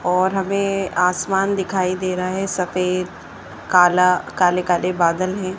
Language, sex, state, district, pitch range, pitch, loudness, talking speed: Hindi, male, Madhya Pradesh, Bhopal, 180-190 Hz, 185 Hz, -19 LUFS, 140 wpm